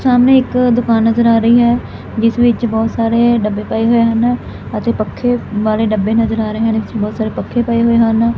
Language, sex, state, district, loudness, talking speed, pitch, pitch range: Punjabi, female, Punjab, Fazilka, -14 LUFS, 195 wpm, 230 Hz, 220-240 Hz